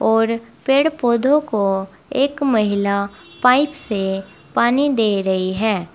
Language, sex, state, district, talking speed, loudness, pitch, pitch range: Hindi, female, Uttar Pradesh, Saharanpur, 120 wpm, -18 LUFS, 220 Hz, 200-270 Hz